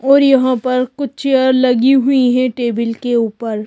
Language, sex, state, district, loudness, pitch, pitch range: Hindi, female, Madhya Pradesh, Bhopal, -14 LUFS, 255 Hz, 240-265 Hz